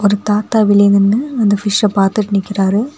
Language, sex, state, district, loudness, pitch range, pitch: Tamil, female, Tamil Nadu, Kanyakumari, -13 LUFS, 200-215 Hz, 205 Hz